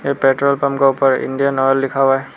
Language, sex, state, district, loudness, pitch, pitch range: Hindi, male, Arunachal Pradesh, Lower Dibang Valley, -15 LUFS, 135 Hz, 135-140 Hz